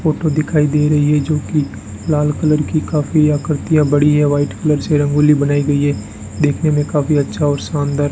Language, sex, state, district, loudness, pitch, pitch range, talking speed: Hindi, male, Rajasthan, Bikaner, -15 LUFS, 150 Hz, 145-150 Hz, 205 wpm